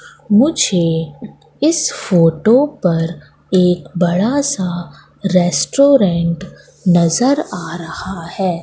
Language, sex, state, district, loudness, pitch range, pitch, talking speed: Hindi, female, Madhya Pradesh, Katni, -15 LUFS, 170-240 Hz, 180 Hz, 85 wpm